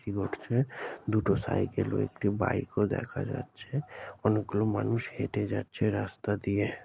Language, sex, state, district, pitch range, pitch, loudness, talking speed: Bengali, male, West Bengal, Malda, 105-130 Hz, 110 Hz, -31 LUFS, 140 wpm